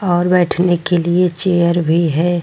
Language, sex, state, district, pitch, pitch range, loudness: Hindi, female, Bihar, Vaishali, 175 Hz, 170-180 Hz, -15 LUFS